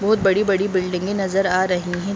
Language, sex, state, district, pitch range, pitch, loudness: Hindi, female, Uttar Pradesh, Muzaffarnagar, 185-200 Hz, 195 Hz, -20 LUFS